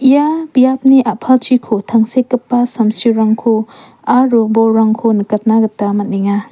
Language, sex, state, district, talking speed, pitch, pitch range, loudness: Garo, female, Meghalaya, West Garo Hills, 90 wpm, 225 Hz, 220-255 Hz, -12 LUFS